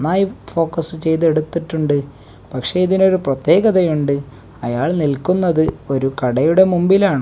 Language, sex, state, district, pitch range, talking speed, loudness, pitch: Malayalam, male, Kerala, Kasaragod, 140-180 Hz, 110 wpm, -16 LUFS, 160 Hz